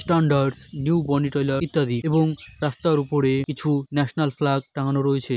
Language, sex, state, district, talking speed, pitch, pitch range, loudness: Bengali, male, West Bengal, Malda, 135 wpm, 145 Hz, 135-155 Hz, -23 LUFS